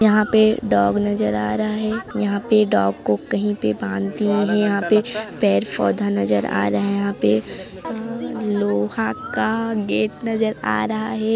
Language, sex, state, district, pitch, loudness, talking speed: Hindi, female, Chhattisgarh, Sarguja, 110 Hz, -20 LUFS, 175 wpm